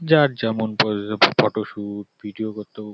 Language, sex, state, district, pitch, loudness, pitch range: Bengali, male, West Bengal, North 24 Parganas, 105 Hz, -21 LUFS, 105-110 Hz